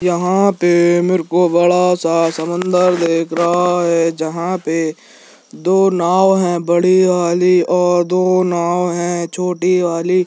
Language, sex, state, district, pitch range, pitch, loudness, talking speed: Hindi, male, Jharkhand, Sahebganj, 170-180 Hz, 175 Hz, -15 LUFS, 135 wpm